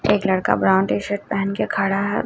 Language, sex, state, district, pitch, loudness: Hindi, male, Chhattisgarh, Raipur, 195 Hz, -20 LUFS